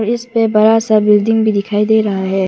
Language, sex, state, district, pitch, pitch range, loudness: Hindi, female, Arunachal Pradesh, Papum Pare, 215 Hz, 205-225 Hz, -13 LUFS